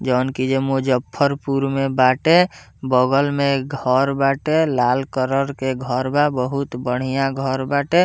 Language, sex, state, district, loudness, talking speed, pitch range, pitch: Bhojpuri, male, Bihar, Muzaffarpur, -19 LUFS, 140 wpm, 130-140 Hz, 135 Hz